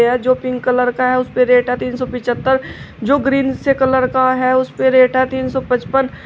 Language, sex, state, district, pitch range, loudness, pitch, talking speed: Hindi, female, Uttar Pradesh, Shamli, 250-260 Hz, -15 LUFS, 255 Hz, 230 wpm